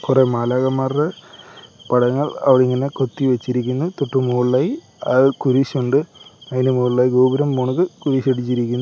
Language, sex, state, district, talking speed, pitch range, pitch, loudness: Malayalam, male, Kerala, Kollam, 115 wpm, 125-140 Hz, 130 Hz, -18 LUFS